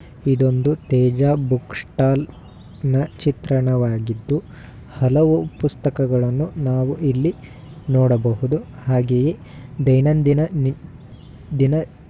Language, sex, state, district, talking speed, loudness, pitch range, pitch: Kannada, male, Karnataka, Shimoga, 75 wpm, -19 LUFS, 125-145 Hz, 135 Hz